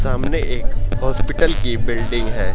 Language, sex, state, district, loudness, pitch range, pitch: Hindi, male, Haryana, Rohtak, -22 LUFS, 100-120 Hz, 110 Hz